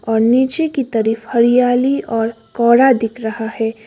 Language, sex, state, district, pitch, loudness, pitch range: Hindi, female, Sikkim, Gangtok, 235 Hz, -15 LUFS, 225-250 Hz